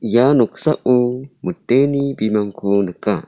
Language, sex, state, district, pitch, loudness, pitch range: Garo, male, Meghalaya, South Garo Hills, 120 Hz, -17 LUFS, 100-130 Hz